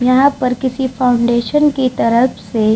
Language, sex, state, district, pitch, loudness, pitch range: Hindi, female, Bihar, Vaishali, 250 Hz, -14 LUFS, 235-260 Hz